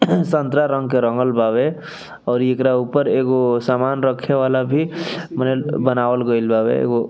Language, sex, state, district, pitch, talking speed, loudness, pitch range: Bhojpuri, male, Bihar, East Champaran, 130 Hz, 160 wpm, -18 LUFS, 125-145 Hz